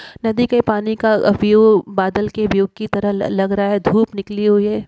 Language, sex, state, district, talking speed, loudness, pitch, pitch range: Hindi, female, Chhattisgarh, Balrampur, 220 wpm, -16 LUFS, 210 Hz, 200-220 Hz